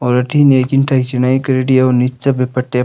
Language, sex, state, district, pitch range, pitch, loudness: Rajasthani, male, Rajasthan, Nagaur, 125-135 Hz, 130 Hz, -13 LUFS